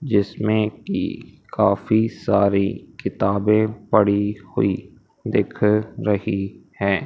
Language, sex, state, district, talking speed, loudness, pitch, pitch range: Hindi, male, Madhya Pradesh, Umaria, 85 wpm, -21 LUFS, 105 Hz, 100-110 Hz